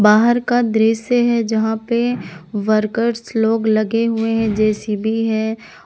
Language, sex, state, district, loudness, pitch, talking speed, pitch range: Hindi, female, Jharkhand, Palamu, -17 LUFS, 225 Hz, 135 wpm, 215-230 Hz